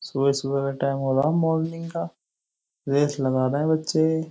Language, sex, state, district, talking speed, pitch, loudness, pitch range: Hindi, male, Uttar Pradesh, Jyotiba Phule Nagar, 180 wpm, 140 Hz, -24 LUFS, 135-160 Hz